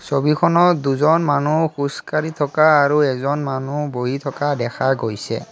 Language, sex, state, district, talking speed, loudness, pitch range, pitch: Assamese, male, Assam, Kamrup Metropolitan, 130 wpm, -18 LUFS, 135-155 Hz, 145 Hz